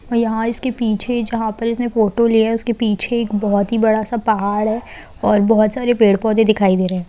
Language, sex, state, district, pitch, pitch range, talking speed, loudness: Hindi, female, Bihar, Saran, 220 Hz, 210-235 Hz, 220 wpm, -17 LUFS